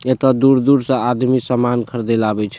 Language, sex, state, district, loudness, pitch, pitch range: Maithili, male, Bihar, Supaul, -16 LUFS, 125 Hz, 120-130 Hz